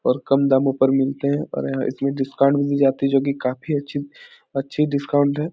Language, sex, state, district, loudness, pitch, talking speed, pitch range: Hindi, male, Bihar, Supaul, -21 LUFS, 140 Hz, 230 wpm, 135-140 Hz